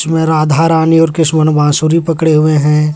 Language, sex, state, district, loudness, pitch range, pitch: Hindi, male, Jharkhand, Deoghar, -10 LUFS, 155-160 Hz, 155 Hz